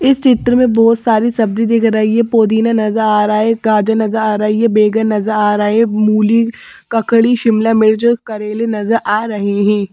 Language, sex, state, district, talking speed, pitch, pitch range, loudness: Hindi, female, Madhya Pradesh, Bhopal, 200 wpm, 220 Hz, 215-230 Hz, -13 LUFS